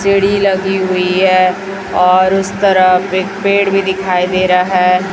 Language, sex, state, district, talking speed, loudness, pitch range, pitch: Hindi, female, Chhattisgarh, Raipur, 165 wpm, -12 LUFS, 185-195 Hz, 190 Hz